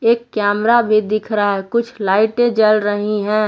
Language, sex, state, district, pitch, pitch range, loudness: Hindi, female, Jharkhand, Palamu, 215 Hz, 205-230 Hz, -16 LUFS